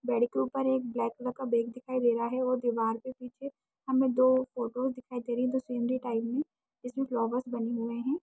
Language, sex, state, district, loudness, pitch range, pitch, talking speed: Hindi, female, Uttarakhand, Tehri Garhwal, -31 LUFS, 235-260 Hz, 250 Hz, 250 wpm